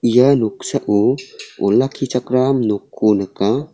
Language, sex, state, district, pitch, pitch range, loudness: Garo, male, Meghalaya, South Garo Hills, 130 Hz, 115-135 Hz, -17 LUFS